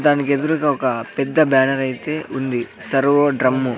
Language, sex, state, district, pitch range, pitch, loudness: Telugu, male, Andhra Pradesh, Sri Satya Sai, 130-145 Hz, 135 Hz, -18 LUFS